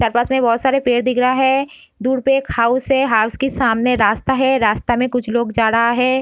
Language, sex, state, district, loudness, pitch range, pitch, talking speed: Hindi, female, Bihar, Darbhanga, -16 LUFS, 235-265 Hz, 250 Hz, 250 wpm